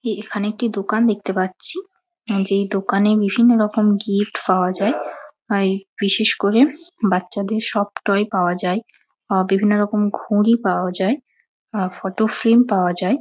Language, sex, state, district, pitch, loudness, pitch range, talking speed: Bengali, female, West Bengal, Jalpaiguri, 205 Hz, -19 LUFS, 195-225 Hz, 140 wpm